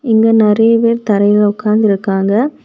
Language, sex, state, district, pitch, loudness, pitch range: Tamil, female, Tamil Nadu, Kanyakumari, 215 Hz, -12 LUFS, 205-230 Hz